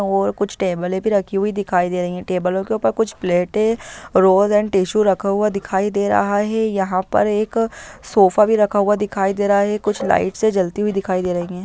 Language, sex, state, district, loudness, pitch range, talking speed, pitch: Hindi, female, Bihar, Sitamarhi, -18 LUFS, 185-210 Hz, 210 wpm, 200 Hz